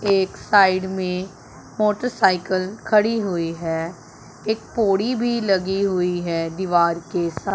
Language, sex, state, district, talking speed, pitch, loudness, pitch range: Hindi, male, Punjab, Pathankot, 125 wpm, 185 Hz, -21 LUFS, 170-205 Hz